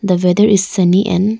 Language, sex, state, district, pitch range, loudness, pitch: English, female, Arunachal Pradesh, Lower Dibang Valley, 180-205 Hz, -13 LUFS, 190 Hz